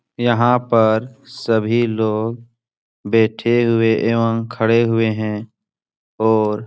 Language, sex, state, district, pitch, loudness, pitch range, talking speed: Hindi, male, Bihar, Supaul, 115 Hz, -17 LUFS, 110-120 Hz, 110 wpm